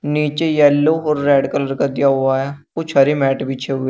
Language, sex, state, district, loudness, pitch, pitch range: Hindi, male, Uttar Pradesh, Shamli, -16 LUFS, 140 Hz, 135-150 Hz